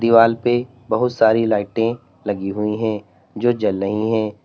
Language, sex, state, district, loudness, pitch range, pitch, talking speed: Hindi, male, Uttar Pradesh, Lalitpur, -19 LUFS, 105-115 Hz, 110 Hz, 160 wpm